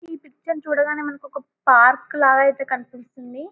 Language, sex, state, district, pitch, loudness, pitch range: Telugu, female, Telangana, Karimnagar, 285 Hz, -18 LUFS, 260-295 Hz